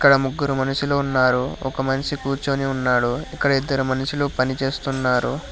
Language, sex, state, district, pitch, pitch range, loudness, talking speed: Telugu, male, Telangana, Hyderabad, 135 Hz, 130-140 Hz, -21 LUFS, 140 wpm